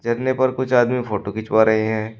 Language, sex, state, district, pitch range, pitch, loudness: Hindi, male, Uttar Pradesh, Shamli, 110-125 Hz, 115 Hz, -19 LUFS